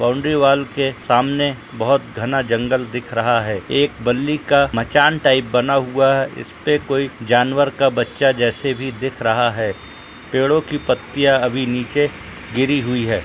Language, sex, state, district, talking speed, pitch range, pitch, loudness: Hindi, male, Uttar Pradesh, Etah, 165 wpm, 120-140 Hz, 130 Hz, -18 LUFS